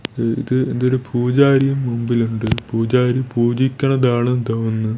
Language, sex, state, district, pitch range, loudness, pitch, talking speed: Malayalam, male, Kerala, Thiruvananthapuram, 115-130 Hz, -18 LUFS, 125 Hz, 85 wpm